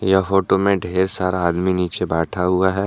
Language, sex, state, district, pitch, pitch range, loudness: Hindi, male, Jharkhand, Deoghar, 95 Hz, 90-95 Hz, -19 LUFS